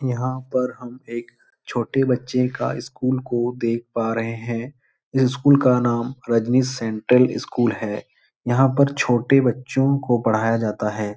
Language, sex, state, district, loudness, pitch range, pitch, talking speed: Hindi, male, Bihar, Supaul, -21 LUFS, 115-130 Hz, 125 Hz, 155 wpm